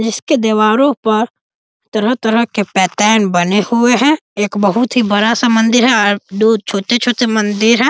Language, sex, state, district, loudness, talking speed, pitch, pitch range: Hindi, male, Bihar, East Champaran, -13 LUFS, 160 wpm, 220 Hz, 205-240 Hz